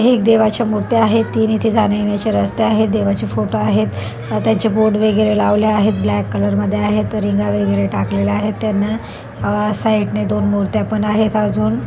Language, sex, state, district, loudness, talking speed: Marathi, male, Maharashtra, Pune, -16 LUFS, 175 wpm